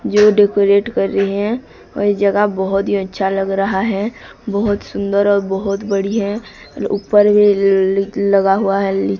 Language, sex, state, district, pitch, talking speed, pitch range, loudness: Hindi, female, Odisha, Sambalpur, 200 Hz, 155 wpm, 195-205 Hz, -16 LUFS